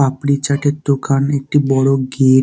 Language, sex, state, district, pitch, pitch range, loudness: Bengali, male, West Bengal, Dakshin Dinajpur, 135 Hz, 135-140 Hz, -15 LUFS